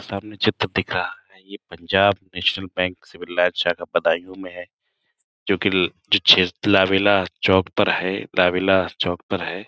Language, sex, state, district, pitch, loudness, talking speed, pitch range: Hindi, male, Uttar Pradesh, Budaun, 95 Hz, -20 LUFS, 155 wpm, 90-100 Hz